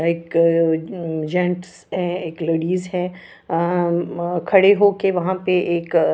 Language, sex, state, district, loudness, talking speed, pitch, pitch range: Hindi, female, Bihar, Patna, -19 LUFS, 105 wpm, 175 Hz, 165-180 Hz